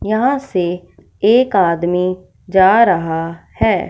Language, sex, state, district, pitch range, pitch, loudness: Hindi, female, Punjab, Fazilka, 175-220 Hz, 185 Hz, -15 LUFS